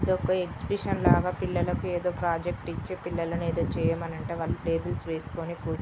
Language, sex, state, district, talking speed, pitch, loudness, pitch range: Telugu, female, Andhra Pradesh, Srikakulam, 145 wpm, 165 Hz, -29 LUFS, 115-170 Hz